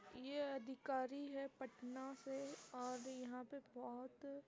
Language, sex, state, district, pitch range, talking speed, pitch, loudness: Hindi, female, Uttar Pradesh, Jalaun, 250-275 Hz, 135 wpm, 265 Hz, -49 LUFS